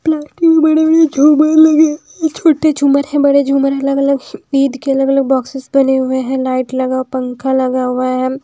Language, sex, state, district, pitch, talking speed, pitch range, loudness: Hindi, female, Odisha, Nuapada, 275 Hz, 190 wpm, 260-305 Hz, -13 LUFS